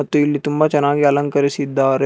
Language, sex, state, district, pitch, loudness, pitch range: Kannada, male, Karnataka, Bangalore, 145 Hz, -17 LUFS, 140-145 Hz